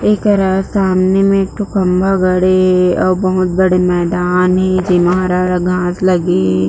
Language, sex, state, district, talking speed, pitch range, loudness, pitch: Chhattisgarhi, female, Chhattisgarh, Jashpur, 150 wpm, 180-190 Hz, -13 LUFS, 185 Hz